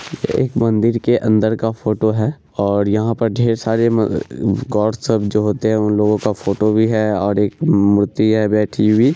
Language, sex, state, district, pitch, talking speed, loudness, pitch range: Hindi, male, Bihar, Araria, 110 Hz, 205 wpm, -16 LUFS, 105-115 Hz